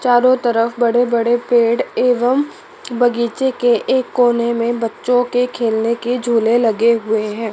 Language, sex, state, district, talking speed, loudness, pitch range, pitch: Hindi, female, Chandigarh, Chandigarh, 145 wpm, -16 LUFS, 230-245 Hz, 240 Hz